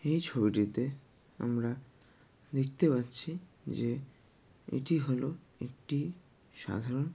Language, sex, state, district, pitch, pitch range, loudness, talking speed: Bengali, male, West Bengal, Dakshin Dinajpur, 130 Hz, 120-150 Hz, -35 LUFS, 85 wpm